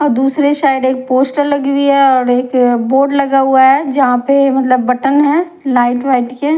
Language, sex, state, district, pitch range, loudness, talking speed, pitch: Hindi, female, Punjab, Fazilka, 255-280 Hz, -12 LUFS, 200 wpm, 270 Hz